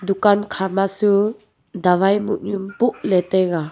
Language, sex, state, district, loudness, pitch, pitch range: Wancho, female, Arunachal Pradesh, Longding, -19 LUFS, 195 Hz, 185-205 Hz